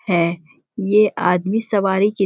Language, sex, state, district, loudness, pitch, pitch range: Hindi, female, Chhattisgarh, Rajnandgaon, -18 LUFS, 195 Hz, 180-210 Hz